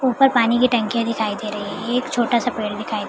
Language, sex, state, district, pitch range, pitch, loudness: Hindi, female, Bihar, Madhepura, 215-245 Hz, 230 Hz, -20 LUFS